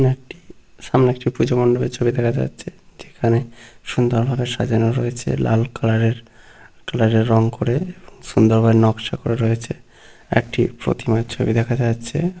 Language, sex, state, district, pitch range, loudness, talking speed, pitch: Bengali, male, West Bengal, Kolkata, 115-125 Hz, -19 LUFS, 135 wpm, 120 Hz